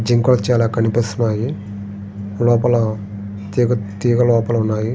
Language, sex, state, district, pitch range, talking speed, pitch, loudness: Telugu, male, Andhra Pradesh, Srikakulam, 100-120 Hz, 95 wpm, 115 Hz, -17 LUFS